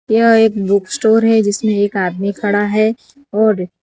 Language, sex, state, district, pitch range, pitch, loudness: Hindi, female, Gujarat, Valsad, 200-225 Hz, 215 Hz, -14 LUFS